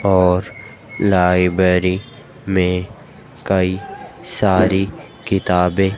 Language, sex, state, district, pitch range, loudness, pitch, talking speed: Hindi, female, Madhya Pradesh, Dhar, 90-100 Hz, -17 LUFS, 95 Hz, 60 wpm